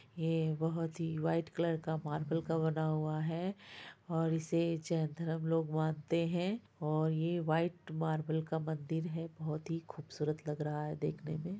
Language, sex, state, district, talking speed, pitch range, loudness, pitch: Hindi, female, Bihar, Purnia, 175 wpm, 155-165 Hz, -36 LUFS, 160 Hz